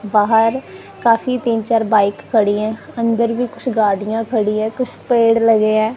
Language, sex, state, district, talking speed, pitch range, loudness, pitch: Hindi, female, Punjab, Kapurthala, 170 wpm, 215-235 Hz, -16 LUFS, 225 Hz